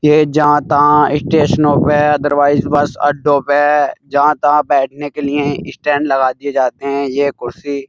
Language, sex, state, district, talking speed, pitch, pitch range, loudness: Hindi, male, Uttar Pradesh, Muzaffarnagar, 150 wpm, 145 Hz, 140-150 Hz, -13 LUFS